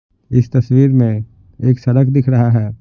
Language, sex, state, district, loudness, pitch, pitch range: Hindi, male, Bihar, Patna, -14 LUFS, 125 Hz, 110-130 Hz